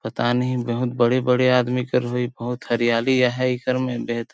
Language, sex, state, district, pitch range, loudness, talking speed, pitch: Sadri, male, Chhattisgarh, Jashpur, 120-125 Hz, -21 LUFS, 205 wpm, 125 Hz